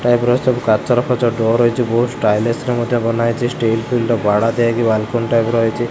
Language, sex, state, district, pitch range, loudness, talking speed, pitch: Odia, male, Odisha, Khordha, 115-120 Hz, -16 LUFS, 195 wpm, 115 Hz